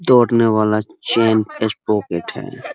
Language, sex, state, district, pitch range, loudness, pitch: Hindi, male, Bihar, Muzaffarpur, 105-115 Hz, -17 LUFS, 110 Hz